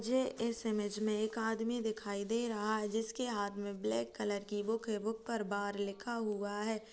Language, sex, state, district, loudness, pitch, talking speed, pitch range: Hindi, female, Uttar Pradesh, Jalaun, -37 LUFS, 215 Hz, 215 wpm, 205-225 Hz